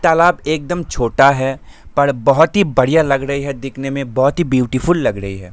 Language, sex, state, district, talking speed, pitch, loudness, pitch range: Hindi, male, Jharkhand, Sahebganj, 205 wpm, 140 Hz, -15 LUFS, 130-160 Hz